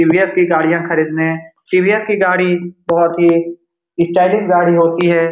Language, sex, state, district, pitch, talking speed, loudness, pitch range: Hindi, male, Bihar, Supaul, 170 Hz, 145 wpm, -14 LUFS, 170-180 Hz